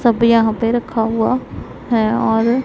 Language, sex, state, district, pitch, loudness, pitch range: Hindi, female, Punjab, Pathankot, 230 Hz, -16 LUFS, 225-235 Hz